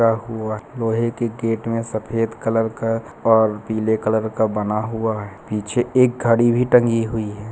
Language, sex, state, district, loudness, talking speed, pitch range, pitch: Hindi, male, Chhattisgarh, Bilaspur, -20 LUFS, 190 wpm, 110-115 Hz, 115 Hz